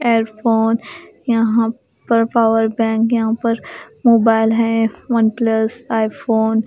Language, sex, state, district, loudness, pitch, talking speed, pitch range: Hindi, female, Bihar, West Champaran, -16 LUFS, 225 Hz, 110 wpm, 225-230 Hz